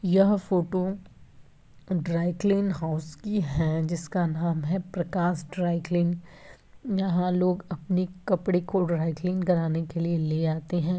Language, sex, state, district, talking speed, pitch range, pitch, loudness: Hindi, female, Bihar, Begusarai, 130 wpm, 165-185 Hz, 175 Hz, -27 LUFS